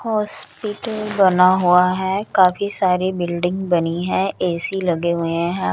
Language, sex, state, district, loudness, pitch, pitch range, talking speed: Hindi, female, Chandigarh, Chandigarh, -19 LUFS, 185 Hz, 175-195 Hz, 135 wpm